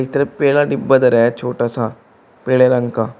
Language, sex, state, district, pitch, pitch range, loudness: Hindi, male, Uttar Pradesh, Shamli, 125 Hz, 115-135 Hz, -15 LUFS